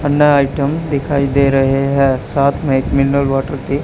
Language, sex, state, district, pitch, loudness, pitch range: Hindi, male, Haryana, Charkhi Dadri, 140 Hz, -14 LUFS, 135-140 Hz